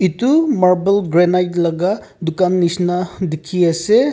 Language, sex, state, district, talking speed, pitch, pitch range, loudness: Nagamese, male, Nagaland, Kohima, 115 wpm, 180 Hz, 175-195 Hz, -16 LUFS